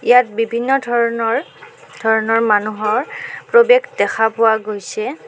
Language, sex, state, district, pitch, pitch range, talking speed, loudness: Assamese, female, Assam, Kamrup Metropolitan, 230 Hz, 220-295 Hz, 100 wpm, -16 LUFS